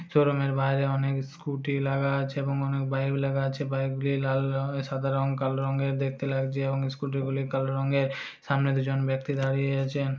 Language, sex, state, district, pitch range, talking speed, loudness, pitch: Bajjika, male, Bihar, Vaishali, 135-140 Hz, 160 wpm, -28 LUFS, 135 Hz